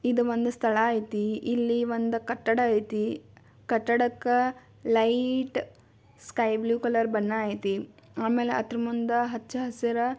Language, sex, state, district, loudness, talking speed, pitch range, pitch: Kannada, female, Karnataka, Belgaum, -27 LUFS, 110 wpm, 225-240 Hz, 235 Hz